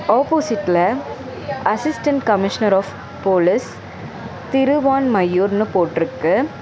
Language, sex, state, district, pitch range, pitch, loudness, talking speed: Tamil, female, Tamil Nadu, Chennai, 190-270 Hz, 210 Hz, -18 LUFS, 65 wpm